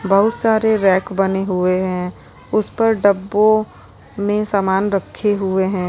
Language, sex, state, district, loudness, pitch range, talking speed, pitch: Hindi, female, Uttar Pradesh, Lalitpur, -17 LUFS, 190-215 Hz, 140 wpm, 200 Hz